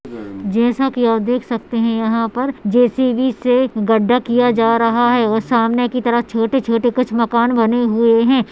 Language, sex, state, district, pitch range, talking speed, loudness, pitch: Hindi, female, Uttarakhand, Tehri Garhwal, 225-245 Hz, 195 wpm, -16 LUFS, 235 Hz